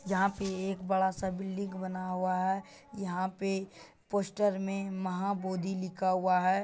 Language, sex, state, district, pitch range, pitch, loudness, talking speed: Magahi, male, Bihar, Gaya, 185-195 Hz, 190 Hz, -33 LUFS, 155 wpm